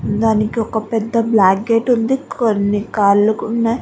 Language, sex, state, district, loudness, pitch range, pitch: Telugu, female, Andhra Pradesh, Guntur, -16 LUFS, 210-230 Hz, 225 Hz